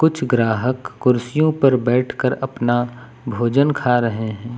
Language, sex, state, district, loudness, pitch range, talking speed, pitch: Hindi, male, Uttar Pradesh, Lucknow, -19 LUFS, 120-135 Hz, 145 wpm, 125 Hz